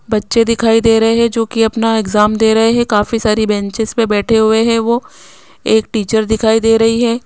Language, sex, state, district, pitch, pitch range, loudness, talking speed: Hindi, female, Rajasthan, Jaipur, 225 Hz, 220-230 Hz, -13 LUFS, 215 wpm